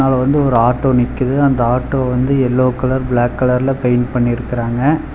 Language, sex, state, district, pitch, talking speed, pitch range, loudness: Tamil, male, Tamil Nadu, Chennai, 130 Hz, 175 wpm, 125-135 Hz, -15 LUFS